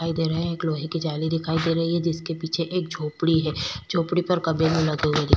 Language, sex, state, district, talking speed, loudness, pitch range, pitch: Hindi, female, Goa, North and South Goa, 245 wpm, -24 LUFS, 155-165 Hz, 160 Hz